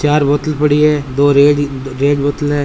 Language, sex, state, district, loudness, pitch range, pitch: Rajasthani, male, Rajasthan, Churu, -13 LUFS, 140-150 Hz, 145 Hz